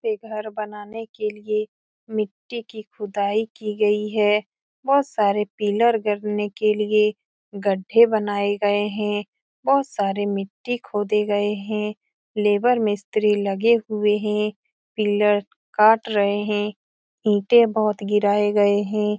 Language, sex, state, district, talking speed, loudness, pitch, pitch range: Hindi, female, Bihar, Saran, 135 wpm, -21 LUFS, 210 Hz, 205-215 Hz